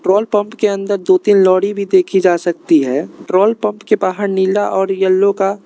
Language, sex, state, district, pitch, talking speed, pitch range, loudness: Hindi, male, Arunachal Pradesh, Lower Dibang Valley, 195 Hz, 210 wpm, 190-205 Hz, -14 LUFS